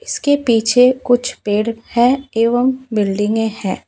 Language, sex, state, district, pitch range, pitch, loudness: Hindi, female, West Bengal, Alipurduar, 220-255 Hz, 235 Hz, -16 LUFS